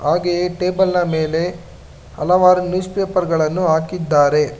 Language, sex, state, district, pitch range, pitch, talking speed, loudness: Kannada, male, Karnataka, Bangalore, 160-180 Hz, 175 Hz, 105 wpm, -17 LUFS